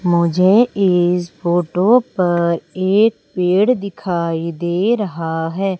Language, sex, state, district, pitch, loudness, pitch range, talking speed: Hindi, female, Madhya Pradesh, Umaria, 180 Hz, -16 LUFS, 170-195 Hz, 105 wpm